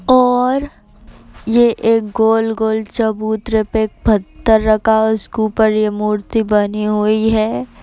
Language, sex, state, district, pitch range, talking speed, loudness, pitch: Hindi, female, Uttar Pradesh, Etah, 215-225 Hz, 140 wpm, -15 LUFS, 220 Hz